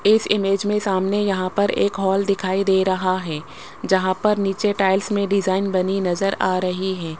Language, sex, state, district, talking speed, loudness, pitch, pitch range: Hindi, male, Rajasthan, Jaipur, 190 wpm, -20 LUFS, 195 Hz, 185-200 Hz